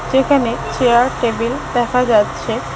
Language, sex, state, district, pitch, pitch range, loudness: Bengali, female, West Bengal, Alipurduar, 240 Hz, 235-255 Hz, -16 LUFS